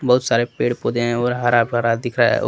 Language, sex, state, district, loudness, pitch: Hindi, male, Jharkhand, Deoghar, -19 LUFS, 120 Hz